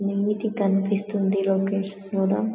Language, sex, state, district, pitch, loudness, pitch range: Telugu, female, Telangana, Karimnagar, 200 Hz, -24 LUFS, 195-205 Hz